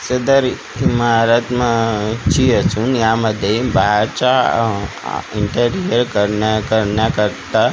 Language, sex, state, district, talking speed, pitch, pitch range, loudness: Marathi, male, Maharashtra, Gondia, 75 wpm, 110 Hz, 105-120 Hz, -16 LUFS